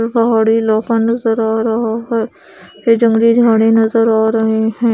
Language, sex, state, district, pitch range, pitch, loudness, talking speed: Hindi, female, Odisha, Khordha, 225-230 Hz, 225 Hz, -13 LUFS, 145 wpm